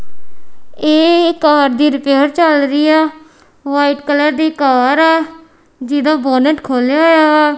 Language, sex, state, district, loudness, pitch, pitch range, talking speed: Punjabi, female, Punjab, Kapurthala, -12 LUFS, 300 Hz, 285-315 Hz, 135 wpm